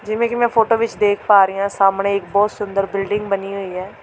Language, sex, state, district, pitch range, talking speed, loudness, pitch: Punjabi, female, Delhi, New Delhi, 195-210 Hz, 255 wpm, -18 LUFS, 200 Hz